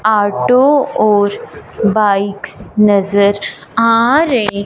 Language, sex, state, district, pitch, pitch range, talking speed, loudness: Hindi, male, Punjab, Fazilka, 210 Hz, 205-230 Hz, 75 wpm, -13 LUFS